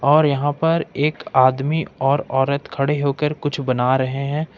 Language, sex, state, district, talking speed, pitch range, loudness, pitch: Hindi, male, Jharkhand, Ranchi, 170 wpm, 135-150 Hz, -19 LUFS, 140 Hz